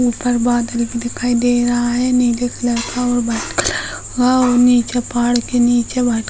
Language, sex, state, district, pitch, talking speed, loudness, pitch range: Hindi, female, Uttar Pradesh, Hamirpur, 240 Hz, 200 wpm, -16 LUFS, 240-245 Hz